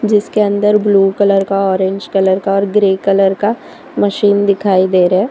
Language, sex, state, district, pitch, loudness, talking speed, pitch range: Hindi, female, Gujarat, Valsad, 195 Hz, -13 LUFS, 190 wpm, 195-205 Hz